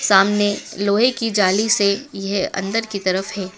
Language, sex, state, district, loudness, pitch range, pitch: Hindi, female, Madhya Pradesh, Dhar, -19 LUFS, 195-210 Hz, 200 Hz